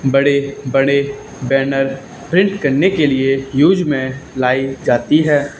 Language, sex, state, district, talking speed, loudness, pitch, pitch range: Hindi, male, Haryana, Charkhi Dadri, 130 wpm, -15 LUFS, 135 Hz, 135-145 Hz